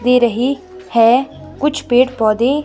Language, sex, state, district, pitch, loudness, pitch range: Hindi, female, Himachal Pradesh, Shimla, 250 Hz, -15 LUFS, 240-285 Hz